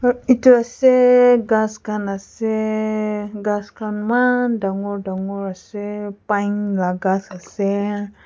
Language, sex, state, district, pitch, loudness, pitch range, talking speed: Nagamese, female, Nagaland, Kohima, 210 Hz, -19 LUFS, 200-230 Hz, 110 wpm